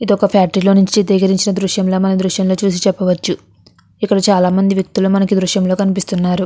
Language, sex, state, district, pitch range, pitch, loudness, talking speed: Telugu, female, Andhra Pradesh, Guntur, 185-195 Hz, 195 Hz, -14 LUFS, 205 wpm